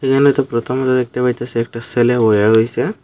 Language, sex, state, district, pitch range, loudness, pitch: Bengali, male, Tripura, Unakoti, 115-130 Hz, -15 LUFS, 120 Hz